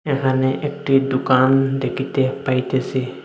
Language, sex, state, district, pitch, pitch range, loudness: Bengali, male, Assam, Hailakandi, 130 Hz, 130-135 Hz, -19 LUFS